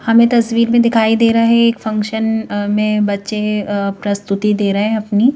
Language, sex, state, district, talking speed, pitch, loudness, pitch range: Hindi, female, Madhya Pradesh, Bhopal, 200 wpm, 215 Hz, -15 LUFS, 205-230 Hz